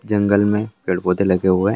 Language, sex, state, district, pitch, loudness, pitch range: Hindi, male, Andhra Pradesh, Anantapur, 100 Hz, -18 LUFS, 95-105 Hz